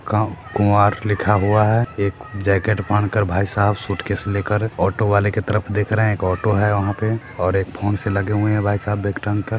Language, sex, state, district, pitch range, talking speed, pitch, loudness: Hindi, male, Bihar, Sitamarhi, 100-105 Hz, 230 wpm, 105 Hz, -19 LUFS